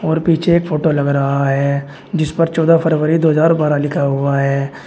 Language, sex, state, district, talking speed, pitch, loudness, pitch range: Hindi, male, Uttar Pradesh, Shamli, 195 wpm, 155 Hz, -15 LUFS, 140-165 Hz